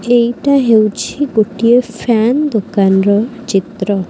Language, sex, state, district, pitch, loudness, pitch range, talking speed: Odia, female, Odisha, Khordha, 225 Hz, -13 LUFS, 205-245 Hz, 90 wpm